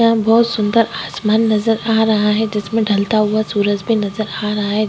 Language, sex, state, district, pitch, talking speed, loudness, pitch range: Hindi, female, Chhattisgarh, Korba, 215 Hz, 170 wpm, -16 LUFS, 210-225 Hz